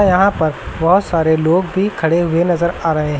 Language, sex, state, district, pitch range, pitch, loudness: Hindi, male, Uttar Pradesh, Lucknow, 160-185 Hz, 170 Hz, -15 LUFS